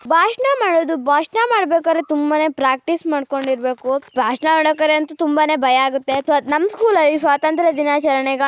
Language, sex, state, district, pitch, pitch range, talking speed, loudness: Kannada, female, Karnataka, Shimoga, 305 Hz, 275-325 Hz, 125 wpm, -17 LUFS